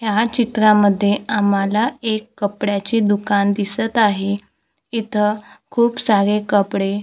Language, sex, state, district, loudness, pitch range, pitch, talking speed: Marathi, female, Maharashtra, Gondia, -18 LUFS, 200-220 Hz, 210 Hz, 100 wpm